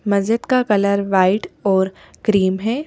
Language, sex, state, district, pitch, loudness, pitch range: Hindi, female, Madhya Pradesh, Bhopal, 200 Hz, -18 LUFS, 195-220 Hz